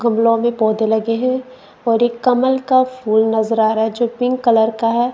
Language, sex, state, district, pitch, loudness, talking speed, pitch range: Hindi, female, Punjab, Kapurthala, 235 Hz, -16 LUFS, 220 wpm, 220-250 Hz